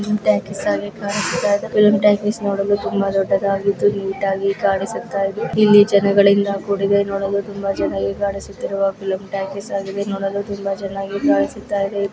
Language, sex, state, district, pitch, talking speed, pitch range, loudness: Kannada, female, Karnataka, Bellary, 200 Hz, 140 wpm, 195-205 Hz, -19 LUFS